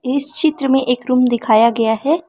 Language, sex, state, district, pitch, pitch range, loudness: Hindi, female, Arunachal Pradesh, Lower Dibang Valley, 255 Hz, 240-280 Hz, -15 LUFS